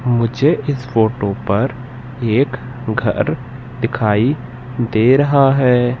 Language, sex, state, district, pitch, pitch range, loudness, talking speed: Hindi, male, Madhya Pradesh, Katni, 125 Hz, 115-130 Hz, -16 LUFS, 100 wpm